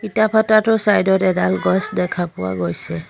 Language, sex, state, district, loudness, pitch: Assamese, female, Assam, Sonitpur, -17 LUFS, 185 Hz